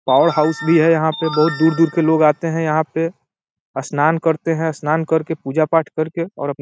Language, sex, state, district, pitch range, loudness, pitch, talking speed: Hindi, male, Uttar Pradesh, Deoria, 155-165 Hz, -17 LUFS, 160 Hz, 235 wpm